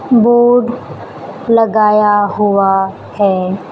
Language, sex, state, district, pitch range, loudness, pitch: Hindi, female, Chhattisgarh, Raipur, 195-235 Hz, -12 LUFS, 210 Hz